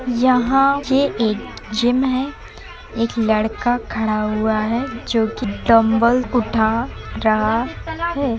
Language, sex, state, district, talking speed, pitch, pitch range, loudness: Hindi, female, Uttar Pradesh, Jalaun, 100 wpm, 230 Hz, 220-255 Hz, -19 LUFS